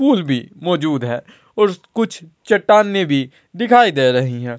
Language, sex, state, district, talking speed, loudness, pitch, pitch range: Hindi, female, Uttarakhand, Tehri Garhwal, 155 wpm, -16 LUFS, 175 Hz, 130-210 Hz